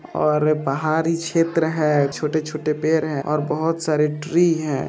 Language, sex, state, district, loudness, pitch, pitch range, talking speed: Hindi, male, Bihar, Purnia, -20 LUFS, 155 Hz, 150-160 Hz, 145 wpm